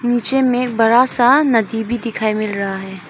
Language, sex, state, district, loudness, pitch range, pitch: Hindi, female, Arunachal Pradesh, Papum Pare, -15 LUFS, 215-245 Hz, 230 Hz